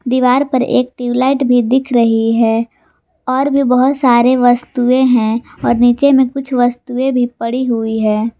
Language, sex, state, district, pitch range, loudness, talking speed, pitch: Hindi, female, Jharkhand, Garhwa, 235-260 Hz, -13 LUFS, 165 wpm, 250 Hz